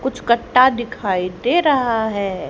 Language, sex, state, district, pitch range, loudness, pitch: Hindi, female, Haryana, Jhajjar, 200-255 Hz, -17 LUFS, 235 Hz